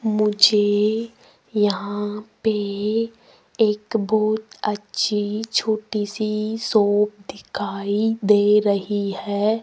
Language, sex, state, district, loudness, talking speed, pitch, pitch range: Hindi, female, Rajasthan, Jaipur, -21 LUFS, 85 wpm, 210 Hz, 205-220 Hz